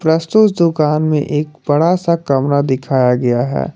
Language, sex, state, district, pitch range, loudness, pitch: Hindi, male, Jharkhand, Garhwa, 135-165 Hz, -14 LUFS, 150 Hz